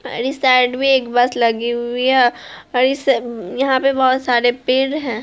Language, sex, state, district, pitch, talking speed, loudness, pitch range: Hindi, female, Bihar, Araria, 255 Hz, 195 wpm, -16 LUFS, 240-265 Hz